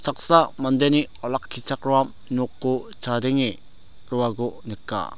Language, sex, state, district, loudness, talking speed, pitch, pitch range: Garo, male, Meghalaya, South Garo Hills, -22 LUFS, 80 wpm, 130 Hz, 120-135 Hz